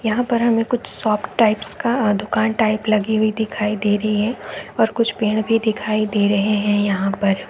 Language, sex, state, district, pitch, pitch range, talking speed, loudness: Hindi, female, Chhattisgarh, Raigarh, 215 Hz, 210-225 Hz, 200 wpm, -19 LUFS